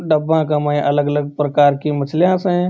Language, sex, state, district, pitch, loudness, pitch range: Marwari, male, Rajasthan, Churu, 150 Hz, -16 LUFS, 145-160 Hz